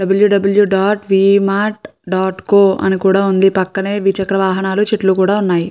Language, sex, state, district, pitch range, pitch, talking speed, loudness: Telugu, female, Andhra Pradesh, Chittoor, 190-200 Hz, 195 Hz, 160 wpm, -14 LUFS